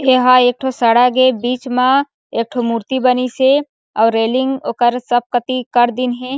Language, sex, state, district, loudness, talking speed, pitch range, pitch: Chhattisgarhi, female, Chhattisgarh, Sarguja, -15 LUFS, 160 wpm, 240-260 Hz, 250 Hz